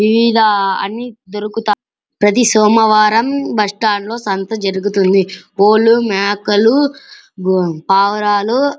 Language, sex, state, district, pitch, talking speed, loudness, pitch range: Telugu, male, Andhra Pradesh, Anantapur, 215 Hz, 90 wpm, -13 LUFS, 200-230 Hz